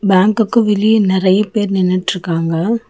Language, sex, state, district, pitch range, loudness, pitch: Tamil, female, Tamil Nadu, Chennai, 185-215 Hz, -14 LUFS, 195 Hz